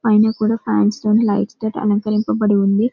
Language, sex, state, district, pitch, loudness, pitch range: Telugu, female, Telangana, Karimnagar, 215 Hz, -17 LUFS, 205-220 Hz